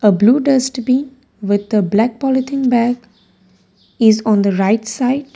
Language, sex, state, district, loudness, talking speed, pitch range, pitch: English, female, Gujarat, Valsad, -15 LUFS, 145 wpm, 205-260 Hz, 225 Hz